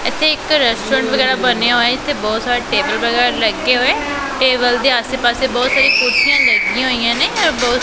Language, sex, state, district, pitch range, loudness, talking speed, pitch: Punjabi, female, Punjab, Pathankot, 240-270 Hz, -14 LUFS, 175 wpm, 250 Hz